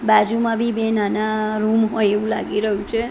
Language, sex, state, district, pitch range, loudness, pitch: Gujarati, female, Gujarat, Gandhinagar, 215-225 Hz, -20 LUFS, 215 Hz